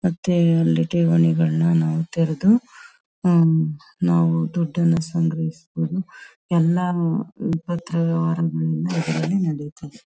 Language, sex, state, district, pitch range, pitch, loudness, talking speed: Kannada, female, Karnataka, Chamarajanagar, 155-175 Hz, 165 Hz, -21 LUFS, 95 wpm